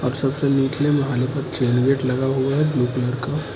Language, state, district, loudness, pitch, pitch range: Hindi, Arunachal Pradesh, Lower Dibang Valley, -20 LUFS, 135 Hz, 125-140 Hz